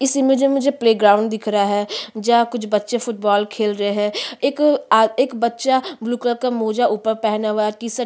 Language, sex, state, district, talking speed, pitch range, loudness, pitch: Hindi, female, Chhattisgarh, Sukma, 225 wpm, 215-250 Hz, -18 LUFS, 225 Hz